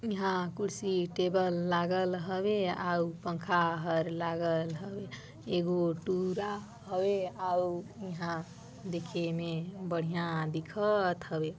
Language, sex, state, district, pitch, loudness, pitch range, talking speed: Chhattisgarhi, female, Chhattisgarh, Balrampur, 175 Hz, -33 LUFS, 170-185 Hz, 105 wpm